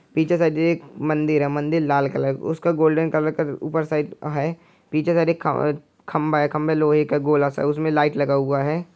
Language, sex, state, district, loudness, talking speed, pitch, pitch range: Angika, male, Bihar, Samastipur, -21 LUFS, 205 wpm, 155 Hz, 145-160 Hz